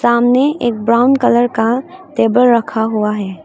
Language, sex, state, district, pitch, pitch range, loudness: Hindi, female, Arunachal Pradesh, Longding, 235 Hz, 220-250 Hz, -13 LUFS